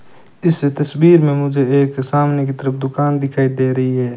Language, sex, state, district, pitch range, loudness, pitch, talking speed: Hindi, male, Rajasthan, Bikaner, 130-145 Hz, -16 LUFS, 140 Hz, 185 wpm